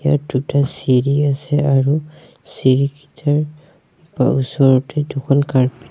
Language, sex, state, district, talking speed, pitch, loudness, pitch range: Assamese, male, Assam, Sonitpur, 120 wpm, 140 Hz, -17 LUFS, 130-150 Hz